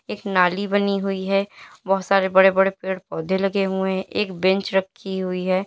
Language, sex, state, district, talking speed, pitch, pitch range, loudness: Hindi, female, Uttar Pradesh, Lalitpur, 200 wpm, 190 Hz, 190-195 Hz, -21 LUFS